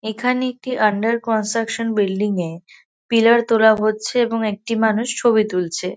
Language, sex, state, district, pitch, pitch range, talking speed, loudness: Bengali, female, West Bengal, North 24 Parganas, 220 Hz, 210-235 Hz, 140 wpm, -18 LUFS